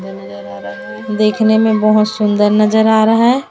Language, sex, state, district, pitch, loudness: Hindi, female, Chhattisgarh, Raipur, 215 Hz, -12 LUFS